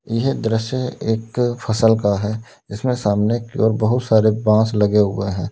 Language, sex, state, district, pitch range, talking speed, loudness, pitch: Hindi, male, Uttar Pradesh, Lalitpur, 105-115 Hz, 175 wpm, -18 LUFS, 110 Hz